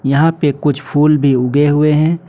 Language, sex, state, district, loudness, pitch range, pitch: Hindi, male, Jharkhand, Ranchi, -13 LUFS, 140-150 Hz, 145 Hz